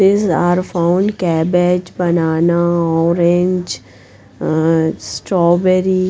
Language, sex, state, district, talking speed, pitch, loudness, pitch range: English, female, Punjab, Pathankot, 80 wpm, 175 Hz, -15 LUFS, 165-185 Hz